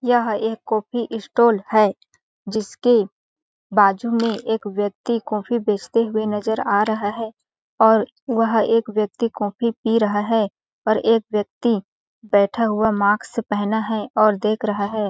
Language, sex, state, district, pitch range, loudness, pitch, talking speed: Hindi, female, Chhattisgarh, Balrampur, 210-230 Hz, -20 LUFS, 220 Hz, 145 wpm